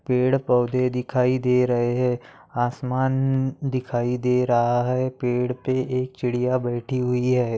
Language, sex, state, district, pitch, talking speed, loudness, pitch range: Hindi, male, Maharashtra, Aurangabad, 125 Hz, 140 wpm, -23 LUFS, 125-130 Hz